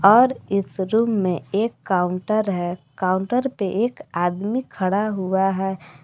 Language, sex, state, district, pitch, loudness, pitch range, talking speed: Hindi, female, Jharkhand, Palamu, 195 Hz, -22 LUFS, 185-220 Hz, 140 wpm